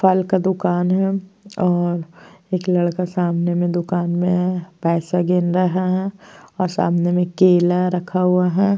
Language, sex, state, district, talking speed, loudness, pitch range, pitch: Hindi, female, Uttar Pradesh, Jyotiba Phule Nagar, 155 wpm, -19 LUFS, 175-185 Hz, 180 Hz